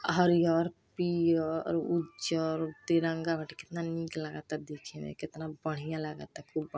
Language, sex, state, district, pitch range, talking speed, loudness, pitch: Hindi, female, Uttar Pradesh, Gorakhpur, 155-170 Hz, 150 wpm, -32 LUFS, 160 Hz